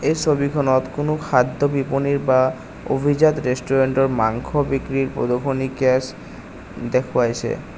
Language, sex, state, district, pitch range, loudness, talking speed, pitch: Assamese, male, Assam, Kamrup Metropolitan, 130-140 Hz, -20 LUFS, 90 wpm, 135 Hz